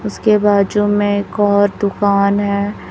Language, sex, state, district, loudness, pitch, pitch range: Hindi, female, Chhattisgarh, Raipur, -15 LUFS, 205 Hz, 200-205 Hz